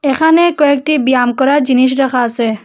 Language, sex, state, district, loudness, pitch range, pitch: Bengali, female, Assam, Hailakandi, -12 LUFS, 250-290 Hz, 270 Hz